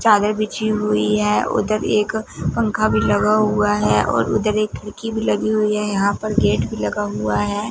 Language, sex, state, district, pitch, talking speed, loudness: Hindi, female, Punjab, Fazilka, 205 Hz, 195 wpm, -19 LUFS